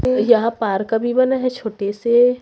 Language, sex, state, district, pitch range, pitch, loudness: Hindi, female, Chhattisgarh, Raipur, 210-245 Hz, 230 Hz, -18 LUFS